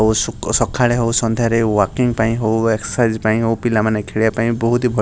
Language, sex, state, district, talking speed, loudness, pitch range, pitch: Odia, male, Odisha, Sambalpur, 215 wpm, -17 LUFS, 110-115 Hz, 115 Hz